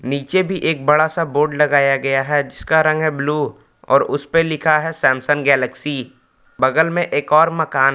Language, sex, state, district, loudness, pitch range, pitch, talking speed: Hindi, male, Jharkhand, Palamu, -17 LUFS, 140-160 Hz, 150 Hz, 190 wpm